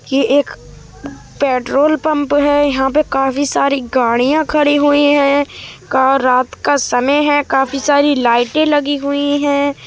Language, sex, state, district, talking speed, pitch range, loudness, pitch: Hindi, female, Uttar Pradesh, Budaun, 140 wpm, 270-290 Hz, -14 LUFS, 285 Hz